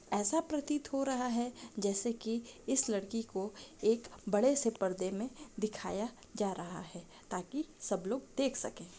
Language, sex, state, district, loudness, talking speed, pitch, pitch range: Hindi, female, Uttarakhand, Uttarkashi, -36 LUFS, 160 wpm, 225 Hz, 200-265 Hz